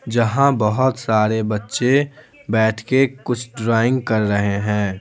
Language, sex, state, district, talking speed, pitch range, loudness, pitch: Hindi, male, Bihar, Patna, 130 wpm, 110-130 Hz, -18 LUFS, 115 Hz